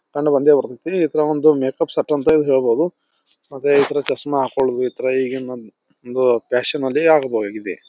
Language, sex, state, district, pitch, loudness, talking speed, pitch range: Kannada, male, Karnataka, Bijapur, 140 Hz, -18 LUFS, 135 wpm, 130-150 Hz